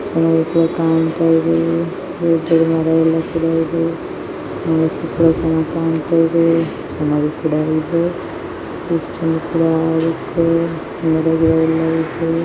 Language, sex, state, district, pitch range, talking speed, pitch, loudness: Kannada, male, Karnataka, Gulbarga, 160-165 Hz, 80 wpm, 165 Hz, -17 LUFS